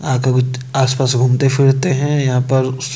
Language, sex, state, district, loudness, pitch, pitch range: Hindi, male, Madhya Pradesh, Bhopal, -15 LUFS, 130 Hz, 130-135 Hz